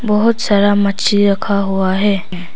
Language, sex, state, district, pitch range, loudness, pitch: Hindi, female, Arunachal Pradesh, Papum Pare, 195-205 Hz, -14 LUFS, 200 Hz